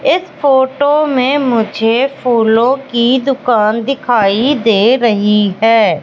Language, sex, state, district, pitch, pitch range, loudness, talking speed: Hindi, female, Madhya Pradesh, Katni, 245 Hz, 225-270 Hz, -12 LUFS, 110 wpm